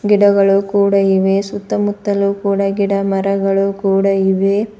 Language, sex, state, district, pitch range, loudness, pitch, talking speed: Kannada, female, Karnataka, Bidar, 195-200 Hz, -15 LUFS, 200 Hz, 115 wpm